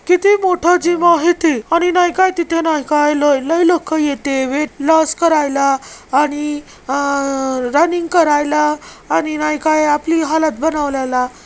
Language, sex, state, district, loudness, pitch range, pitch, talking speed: Marathi, male, Maharashtra, Chandrapur, -15 LUFS, 285-335 Hz, 305 Hz, 135 wpm